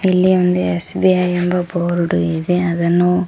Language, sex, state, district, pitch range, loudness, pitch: Kannada, male, Karnataka, Koppal, 170-180 Hz, -16 LUFS, 180 Hz